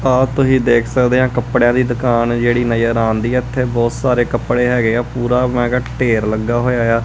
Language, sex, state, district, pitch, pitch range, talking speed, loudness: Punjabi, male, Punjab, Kapurthala, 120 Hz, 120-125 Hz, 215 wpm, -15 LUFS